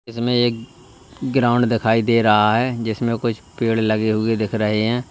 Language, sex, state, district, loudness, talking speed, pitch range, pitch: Hindi, male, Uttar Pradesh, Lalitpur, -19 LUFS, 175 wpm, 110-120 Hz, 115 Hz